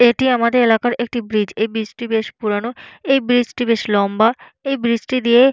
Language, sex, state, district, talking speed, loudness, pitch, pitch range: Bengali, female, Jharkhand, Jamtara, 195 wpm, -17 LUFS, 235 Hz, 220-245 Hz